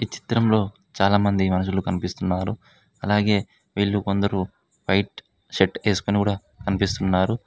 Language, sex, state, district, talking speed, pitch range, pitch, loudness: Telugu, male, Telangana, Mahabubabad, 95 wpm, 95-105 Hz, 100 Hz, -23 LUFS